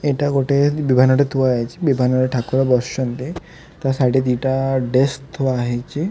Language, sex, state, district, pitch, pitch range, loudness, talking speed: Odia, male, Odisha, Khordha, 130 Hz, 125-140 Hz, -18 LUFS, 155 wpm